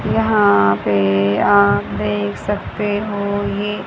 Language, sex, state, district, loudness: Hindi, female, Haryana, Charkhi Dadri, -17 LUFS